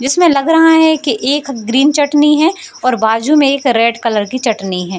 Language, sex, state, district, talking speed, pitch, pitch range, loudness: Hindi, female, Bihar, Jamui, 215 wpm, 275 Hz, 230-300 Hz, -12 LUFS